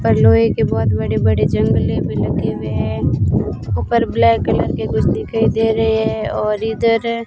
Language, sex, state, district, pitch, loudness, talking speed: Hindi, female, Rajasthan, Bikaner, 115 Hz, -16 LUFS, 165 wpm